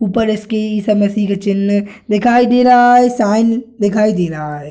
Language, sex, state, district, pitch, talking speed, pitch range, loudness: Hindi, male, Bihar, Gaya, 215 Hz, 190 wpm, 205-230 Hz, -13 LUFS